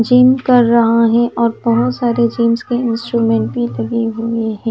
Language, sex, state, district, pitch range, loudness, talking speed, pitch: Hindi, female, Himachal Pradesh, Shimla, 225-240 Hz, -14 LUFS, 155 wpm, 230 Hz